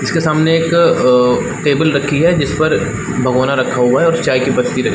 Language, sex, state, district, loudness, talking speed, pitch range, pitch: Hindi, male, Chhattisgarh, Balrampur, -13 LUFS, 205 wpm, 130-165 Hz, 145 Hz